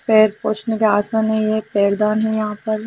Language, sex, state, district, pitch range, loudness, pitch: Hindi, female, Jharkhand, Sahebganj, 210-220 Hz, -18 LUFS, 215 Hz